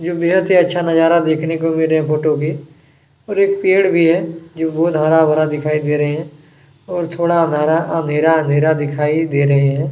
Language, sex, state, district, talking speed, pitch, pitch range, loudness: Hindi, male, Chhattisgarh, Kabirdham, 205 wpm, 160 Hz, 150-170 Hz, -15 LUFS